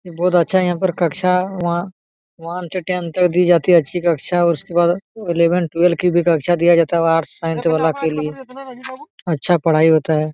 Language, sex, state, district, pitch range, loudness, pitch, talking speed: Hindi, male, Jharkhand, Jamtara, 165-180 Hz, -17 LUFS, 175 Hz, 205 wpm